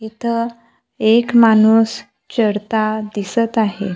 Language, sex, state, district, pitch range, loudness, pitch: Marathi, female, Maharashtra, Gondia, 215-230 Hz, -16 LUFS, 220 Hz